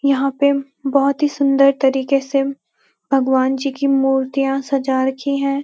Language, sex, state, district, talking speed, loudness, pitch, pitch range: Hindi, female, Uttarakhand, Uttarkashi, 150 wpm, -17 LUFS, 275 Hz, 270-275 Hz